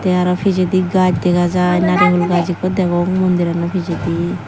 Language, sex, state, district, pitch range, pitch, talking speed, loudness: Chakma, female, Tripura, Dhalai, 175-185 Hz, 180 Hz, 160 wpm, -15 LUFS